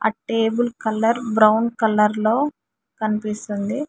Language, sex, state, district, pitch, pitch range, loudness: Telugu, female, Telangana, Hyderabad, 220 Hz, 215-230 Hz, -20 LUFS